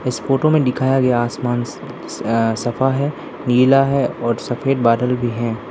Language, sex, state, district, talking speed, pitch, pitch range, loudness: Hindi, male, Arunachal Pradesh, Lower Dibang Valley, 180 wpm, 125 Hz, 120-135 Hz, -18 LUFS